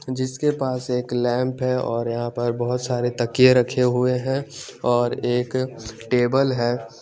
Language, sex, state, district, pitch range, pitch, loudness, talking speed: Hindi, male, Chandigarh, Chandigarh, 120-130 Hz, 125 Hz, -22 LUFS, 155 wpm